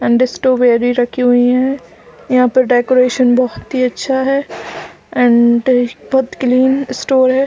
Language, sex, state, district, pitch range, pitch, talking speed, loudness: Hindi, female, Chhattisgarh, Balrampur, 245-260 Hz, 255 Hz, 135 wpm, -13 LUFS